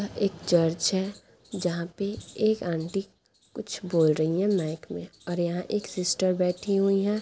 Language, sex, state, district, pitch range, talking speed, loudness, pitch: Hindi, female, Bihar, East Champaran, 170-200 Hz, 165 wpm, -27 LUFS, 185 Hz